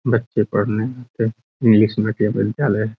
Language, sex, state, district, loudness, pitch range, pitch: Hindi, male, Bihar, Araria, -19 LUFS, 110-120 Hz, 110 Hz